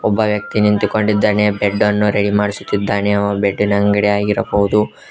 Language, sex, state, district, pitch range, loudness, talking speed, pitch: Kannada, male, Karnataka, Koppal, 100-105 Hz, -16 LUFS, 130 wpm, 105 Hz